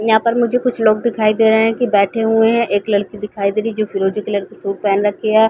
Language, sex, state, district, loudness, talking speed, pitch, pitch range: Hindi, female, Chhattisgarh, Bilaspur, -16 LUFS, 295 wpm, 215 Hz, 205-225 Hz